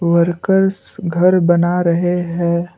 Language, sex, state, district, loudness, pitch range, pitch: Hindi, male, Assam, Kamrup Metropolitan, -15 LUFS, 170-180 Hz, 175 Hz